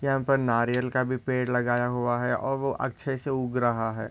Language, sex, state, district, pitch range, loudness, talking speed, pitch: Hindi, male, Maharashtra, Solapur, 120-135 Hz, -27 LUFS, 235 wpm, 125 Hz